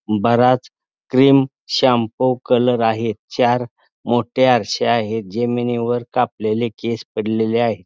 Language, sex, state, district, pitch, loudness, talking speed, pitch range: Marathi, male, Maharashtra, Pune, 120 Hz, -18 LUFS, 105 wpm, 115-125 Hz